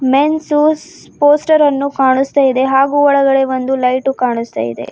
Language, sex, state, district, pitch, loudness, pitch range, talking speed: Kannada, female, Karnataka, Bidar, 270 Hz, -13 LUFS, 260-290 Hz, 135 wpm